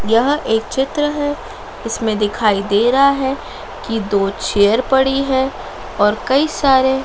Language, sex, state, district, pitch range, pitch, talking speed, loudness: Hindi, female, Madhya Pradesh, Dhar, 215-275 Hz, 260 Hz, 145 wpm, -16 LUFS